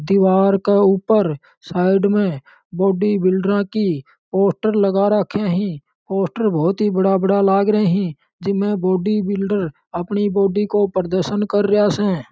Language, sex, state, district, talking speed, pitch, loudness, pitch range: Marwari, male, Rajasthan, Churu, 130 wpm, 195 Hz, -18 LUFS, 185-205 Hz